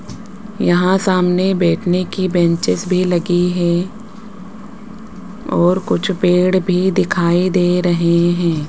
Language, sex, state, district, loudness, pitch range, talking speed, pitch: Hindi, female, Rajasthan, Jaipur, -15 LUFS, 175-195 Hz, 110 wpm, 180 Hz